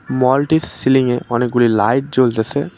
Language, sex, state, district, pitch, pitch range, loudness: Bengali, male, West Bengal, Cooch Behar, 130 Hz, 120-135 Hz, -15 LUFS